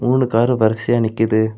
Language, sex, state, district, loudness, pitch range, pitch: Tamil, male, Tamil Nadu, Kanyakumari, -17 LUFS, 110-120 Hz, 115 Hz